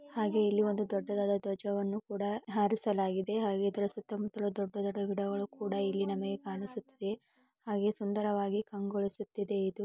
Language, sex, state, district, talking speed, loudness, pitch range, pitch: Kannada, female, Karnataka, Belgaum, 140 wpm, -34 LUFS, 200-210 Hz, 205 Hz